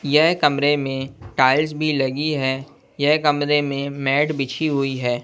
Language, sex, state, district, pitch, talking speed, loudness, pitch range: Hindi, male, Bihar, West Champaran, 145 Hz, 160 wpm, -20 LUFS, 135-150 Hz